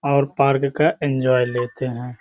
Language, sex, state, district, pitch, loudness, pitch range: Hindi, male, Uttar Pradesh, Hamirpur, 135 Hz, -20 LUFS, 125-140 Hz